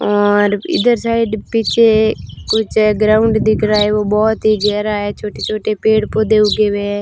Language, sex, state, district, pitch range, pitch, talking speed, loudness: Hindi, female, Rajasthan, Barmer, 210-220 Hz, 215 Hz, 180 wpm, -14 LUFS